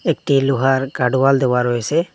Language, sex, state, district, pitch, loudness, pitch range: Bengali, male, Assam, Hailakandi, 135 Hz, -17 LUFS, 125-145 Hz